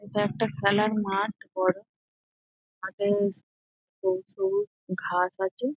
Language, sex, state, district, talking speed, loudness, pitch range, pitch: Bengali, female, West Bengal, North 24 Parganas, 105 wpm, -28 LUFS, 185-210 Hz, 200 Hz